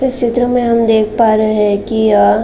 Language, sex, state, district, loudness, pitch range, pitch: Hindi, female, Uttar Pradesh, Jalaun, -12 LUFS, 215-240 Hz, 220 Hz